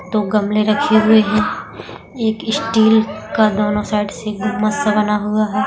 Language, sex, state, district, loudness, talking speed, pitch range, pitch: Hindi, female, Bihar, Darbhanga, -16 LUFS, 160 wpm, 210-220 Hz, 215 Hz